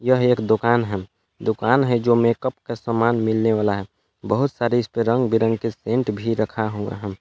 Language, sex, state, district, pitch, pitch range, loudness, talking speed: Hindi, male, Jharkhand, Palamu, 115 Hz, 105-120 Hz, -21 LUFS, 210 wpm